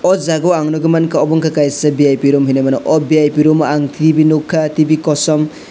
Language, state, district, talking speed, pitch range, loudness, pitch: Kokborok, Tripura, West Tripura, 230 wpm, 145-160 Hz, -13 LUFS, 155 Hz